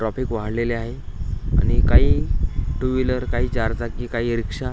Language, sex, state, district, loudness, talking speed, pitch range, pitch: Marathi, male, Maharashtra, Washim, -22 LUFS, 140 wpm, 115-125 Hz, 120 Hz